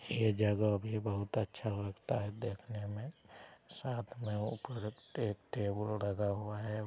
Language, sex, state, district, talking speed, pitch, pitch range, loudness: Hindi, male, Bihar, Araria, 150 wpm, 105 Hz, 105-115 Hz, -38 LUFS